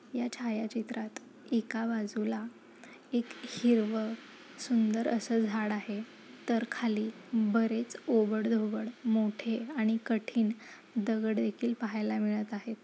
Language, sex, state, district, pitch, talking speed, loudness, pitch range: Marathi, female, Maharashtra, Nagpur, 225 Hz, 105 wpm, -32 LUFS, 220-235 Hz